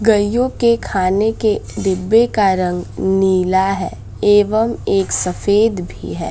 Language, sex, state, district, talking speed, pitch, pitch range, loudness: Hindi, female, Bihar, West Champaran, 135 wpm, 200 Hz, 185-220 Hz, -16 LUFS